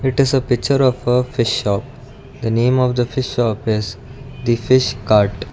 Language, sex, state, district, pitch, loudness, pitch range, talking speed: English, male, Karnataka, Bangalore, 125 Hz, -17 LUFS, 115-130 Hz, 195 wpm